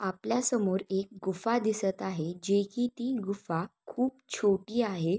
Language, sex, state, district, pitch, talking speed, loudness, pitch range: Marathi, female, Maharashtra, Sindhudurg, 200 Hz, 140 wpm, -31 LUFS, 190-240 Hz